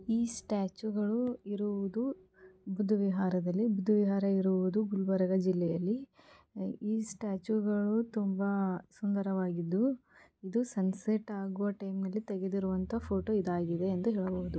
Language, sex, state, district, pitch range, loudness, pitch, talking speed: Kannada, female, Karnataka, Gulbarga, 190-215 Hz, -33 LUFS, 200 Hz, 100 wpm